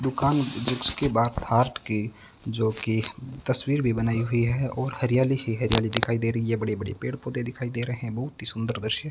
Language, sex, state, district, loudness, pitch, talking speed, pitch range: Hindi, male, Rajasthan, Bikaner, -26 LUFS, 115 Hz, 205 wpm, 110-130 Hz